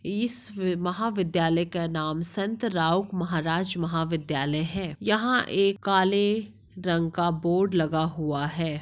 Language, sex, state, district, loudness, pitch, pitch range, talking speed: Hindi, female, Maharashtra, Sindhudurg, -26 LUFS, 175 Hz, 165-195 Hz, 120 wpm